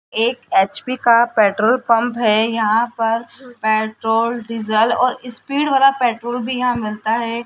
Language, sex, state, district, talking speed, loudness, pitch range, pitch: Hindi, female, Rajasthan, Jaipur, 145 wpm, -17 LUFS, 220-245 Hz, 235 Hz